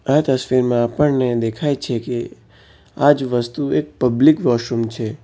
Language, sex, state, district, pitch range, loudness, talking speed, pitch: Gujarati, male, Gujarat, Valsad, 120-145 Hz, -18 LUFS, 150 wpm, 125 Hz